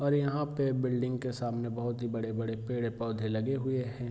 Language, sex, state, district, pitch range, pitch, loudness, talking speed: Hindi, male, Bihar, Vaishali, 115-130 Hz, 120 Hz, -33 LUFS, 205 wpm